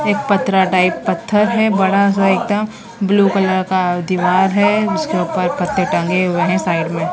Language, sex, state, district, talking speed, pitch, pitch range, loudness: Hindi, female, Maharashtra, Mumbai Suburban, 175 wpm, 190 Hz, 185-205 Hz, -15 LUFS